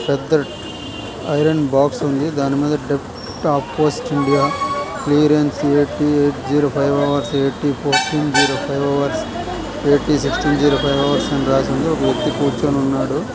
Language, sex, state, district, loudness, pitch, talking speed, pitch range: Telugu, male, Andhra Pradesh, Visakhapatnam, -17 LUFS, 145 Hz, 145 wpm, 140-150 Hz